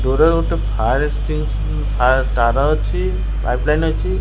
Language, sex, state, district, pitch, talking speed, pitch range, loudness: Odia, male, Odisha, Khordha, 120 Hz, 130 wpm, 95-145 Hz, -18 LUFS